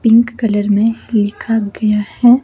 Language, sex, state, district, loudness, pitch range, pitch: Hindi, female, Himachal Pradesh, Shimla, -15 LUFS, 210-230 Hz, 220 Hz